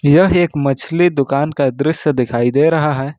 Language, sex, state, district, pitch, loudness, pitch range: Hindi, male, Jharkhand, Ranchi, 145 Hz, -15 LUFS, 135-160 Hz